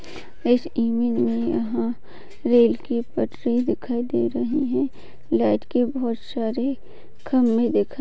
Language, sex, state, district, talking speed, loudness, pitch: Hindi, female, Chhattisgarh, Bastar, 135 wpm, -23 LUFS, 235 Hz